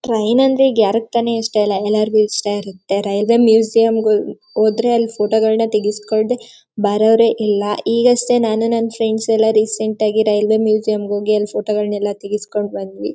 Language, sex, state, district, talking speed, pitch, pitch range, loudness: Kannada, female, Karnataka, Mysore, 160 wpm, 215 Hz, 210-225 Hz, -16 LUFS